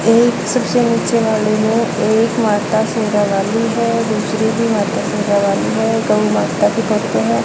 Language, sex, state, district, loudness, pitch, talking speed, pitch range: Hindi, female, Haryana, Charkhi Dadri, -15 LUFS, 220 Hz, 155 wpm, 210-230 Hz